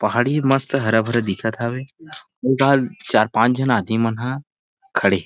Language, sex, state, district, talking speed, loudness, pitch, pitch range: Chhattisgarhi, male, Chhattisgarh, Rajnandgaon, 185 wpm, -19 LUFS, 130 Hz, 115-135 Hz